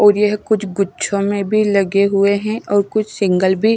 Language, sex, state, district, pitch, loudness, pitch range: Hindi, female, Himachal Pradesh, Shimla, 200 Hz, -16 LUFS, 200-210 Hz